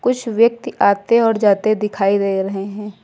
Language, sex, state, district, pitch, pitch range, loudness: Hindi, female, Uttar Pradesh, Lucknow, 210 Hz, 200-230 Hz, -16 LUFS